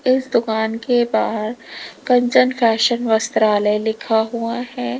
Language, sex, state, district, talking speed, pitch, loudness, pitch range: Hindi, female, Uttar Pradesh, Lalitpur, 120 wpm, 230 Hz, -18 LUFS, 220-245 Hz